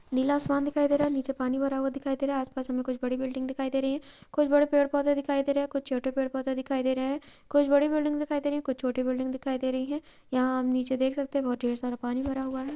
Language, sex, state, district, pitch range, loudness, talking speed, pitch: Maithili, female, Bihar, Purnia, 260-285 Hz, -29 LUFS, 300 wpm, 270 Hz